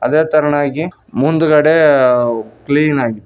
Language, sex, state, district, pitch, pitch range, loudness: Kannada, male, Karnataka, Koppal, 145 Hz, 125-155 Hz, -13 LUFS